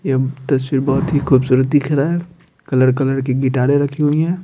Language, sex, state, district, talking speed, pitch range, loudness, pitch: Hindi, male, Bihar, Patna, 205 wpm, 130-150 Hz, -16 LUFS, 135 Hz